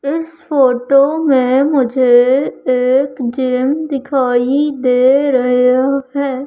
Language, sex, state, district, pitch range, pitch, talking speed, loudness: Hindi, female, Madhya Pradesh, Umaria, 255-280 Hz, 265 Hz, 95 wpm, -13 LUFS